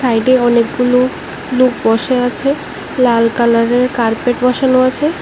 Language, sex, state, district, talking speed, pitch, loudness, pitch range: Bengali, male, Tripura, West Tripura, 140 wpm, 250 Hz, -13 LUFS, 235-255 Hz